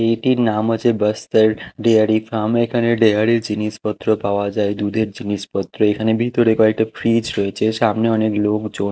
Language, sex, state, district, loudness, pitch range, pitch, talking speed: Bengali, male, Odisha, Khordha, -18 LUFS, 105-115 Hz, 110 Hz, 140 wpm